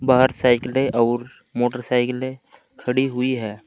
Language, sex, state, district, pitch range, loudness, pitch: Hindi, male, Uttar Pradesh, Saharanpur, 120-130 Hz, -21 LUFS, 125 Hz